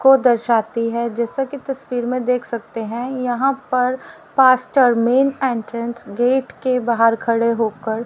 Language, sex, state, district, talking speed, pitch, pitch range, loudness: Hindi, female, Haryana, Rohtak, 155 wpm, 245 Hz, 230-260 Hz, -19 LUFS